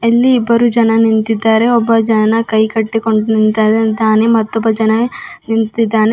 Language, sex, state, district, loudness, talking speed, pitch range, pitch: Kannada, female, Karnataka, Bidar, -12 LUFS, 100 wpm, 220-230 Hz, 225 Hz